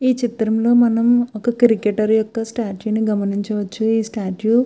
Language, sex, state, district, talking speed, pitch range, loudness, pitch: Telugu, female, Andhra Pradesh, Visakhapatnam, 155 wpm, 215-235 Hz, -18 LUFS, 220 Hz